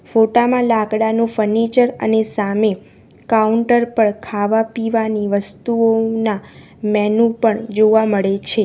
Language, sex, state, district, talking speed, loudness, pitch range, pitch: Gujarati, female, Gujarat, Valsad, 110 wpm, -16 LUFS, 210-230 Hz, 220 Hz